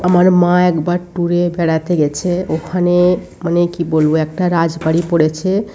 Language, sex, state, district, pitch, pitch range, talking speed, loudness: Bengali, female, West Bengal, North 24 Parganas, 175 Hz, 165-180 Hz, 155 wpm, -15 LUFS